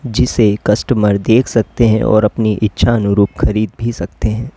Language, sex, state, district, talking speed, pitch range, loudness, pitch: Hindi, male, Uttar Pradesh, Lalitpur, 170 wpm, 105-115 Hz, -14 LUFS, 110 Hz